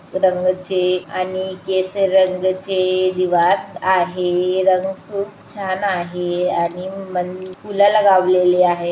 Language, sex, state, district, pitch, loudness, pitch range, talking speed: Marathi, female, Maharashtra, Chandrapur, 185 Hz, -18 LUFS, 180-190 Hz, 110 wpm